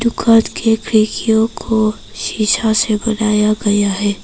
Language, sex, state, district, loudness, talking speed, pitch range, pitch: Hindi, female, Arunachal Pradesh, Papum Pare, -15 LUFS, 125 wpm, 210-225 Hz, 215 Hz